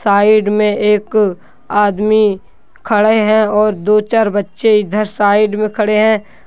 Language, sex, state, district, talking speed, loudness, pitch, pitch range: Hindi, male, Jharkhand, Deoghar, 140 wpm, -13 LUFS, 210 Hz, 205-215 Hz